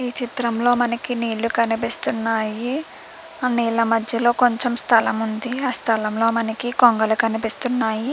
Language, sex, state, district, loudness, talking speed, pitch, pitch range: Telugu, female, Andhra Pradesh, Krishna, -20 LUFS, 125 wpm, 235 Hz, 225-245 Hz